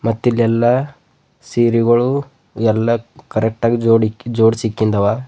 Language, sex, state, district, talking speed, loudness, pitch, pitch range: Kannada, male, Karnataka, Bidar, 115 wpm, -16 LUFS, 115 Hz, 110-125 Hz